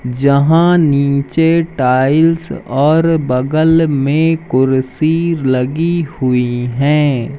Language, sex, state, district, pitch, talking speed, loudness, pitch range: Hindi, male, Madhya Pradesh, Umaria, 145 Hz, 80 wpm, -13 LUFS, 130-165 Hz